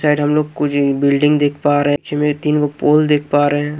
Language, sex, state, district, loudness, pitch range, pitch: Hindi, male, Haryana, Jhajjar, -15 LUFS, 145-150 Hz, 145 Hz